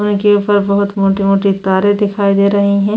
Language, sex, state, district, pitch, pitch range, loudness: Hindi, female, Goa, North and South Goa, 200 Hz, 195-205 Hz, -13 LUFS